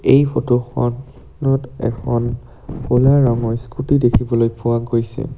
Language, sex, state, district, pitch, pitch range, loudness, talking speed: Assamese, male, Assam, Sonitpur, 120 Hz, 115-135 Hz, -18 LUFS, 125 wpm